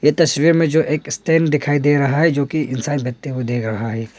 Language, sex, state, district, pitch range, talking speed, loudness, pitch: Hindi, male, Arunachal Pradesh, Longding, 130-155 Hz, 260 wpm, -17 LUFS, 145 Hz